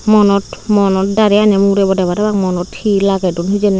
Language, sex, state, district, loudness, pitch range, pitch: Chakma, female, Tripura, Unakoti, -13 LUFS, 190-210 Hz, 200 Hz